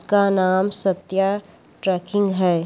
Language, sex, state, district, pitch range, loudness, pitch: Chhattisgarhi, female, Chhattisgarh, Korba, 185-200 Hz, -20 LUFS, 190 Hz